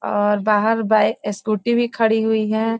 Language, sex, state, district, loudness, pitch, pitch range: Hindi, female, Bihar, Gopalganj, -18 LUFS, 220 Hz, 210-225 Hz